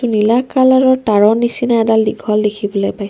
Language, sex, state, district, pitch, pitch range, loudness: Assamese, female, Assam, Kamrup Metropolitan, 225 Hz, 210-245 Hz, -13 LUFS